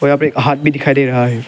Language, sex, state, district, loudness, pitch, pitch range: Hindi, male, Arunachal Pradesh, Lower Dibang Valley, -13 LUFS, 140 Hz, 130-145 Hz